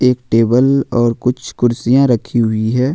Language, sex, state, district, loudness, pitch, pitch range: Hindi, male, Jharkhand, Ranchi, -14 LUFS, 120 Hz, 115-125 Hz